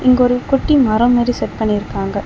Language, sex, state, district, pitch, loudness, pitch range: Tamil, female, Tamil Nadu, Chennai, 245 Hz, -15 LUFS, 215-255 Hz